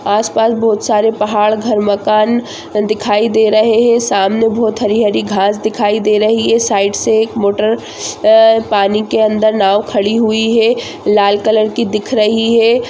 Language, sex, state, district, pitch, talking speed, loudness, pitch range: Hindi, female, Andhra Pradesh, Chittoor, 215 Hz, 170 wpm, -12 LUFS, 210-225 Hz